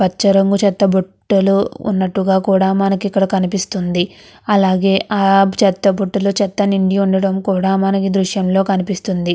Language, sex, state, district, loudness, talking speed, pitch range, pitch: Telugu, female, Andhra Pradesh, Krishna, -15 LUFS, 130 wpm, 190-200 Hz, 195 Hz